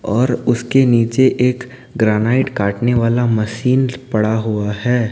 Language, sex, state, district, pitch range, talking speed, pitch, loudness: Hindi, male, Odisha, Nuapada, 110-125 Hz, 130 wpm, 120 Hz, -16 LUFS